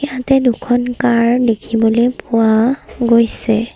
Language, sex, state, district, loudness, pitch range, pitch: Assamese, female, Assam, Sonitpur, -14 LUFS, 230-250 Hz, 235 Hz